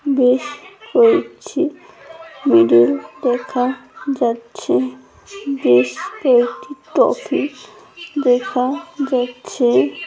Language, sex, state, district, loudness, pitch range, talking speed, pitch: Bengali, female, West Bengal, Jalpaiguri, -17 LUFS, 245-325 Hz, 60 wpm, 265 Hz